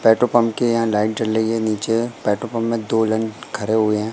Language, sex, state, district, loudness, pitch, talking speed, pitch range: Hindi, male, Madhya Pradesh, Katni, -20 LUFS, 110 Hz, 245 wpm, 110-115 Hz